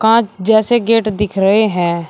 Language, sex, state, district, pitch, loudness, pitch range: Hindi, male, Uttar Pradesh, Shamli, 215 Hz, -14 LUFS, 195-225 Hz